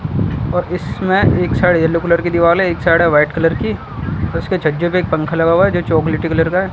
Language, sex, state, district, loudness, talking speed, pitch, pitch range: Hindi, male, Delhi, New Delhi, -15 LUFS, 260 wpm, 165 Hz, 155-175 Hz